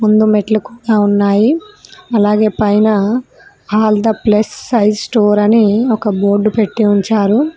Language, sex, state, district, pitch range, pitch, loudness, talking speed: Telugu, female, Telangana, Mahabubabad, 210-225 Hz, 215 Hz, -13 LUFS, 125 wpm